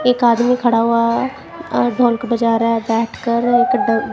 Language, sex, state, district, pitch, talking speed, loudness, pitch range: Hindi, female, Punjab, Kapurthala, 235 Hz, 190 wpm, -16 LUFS, 230-245 Hz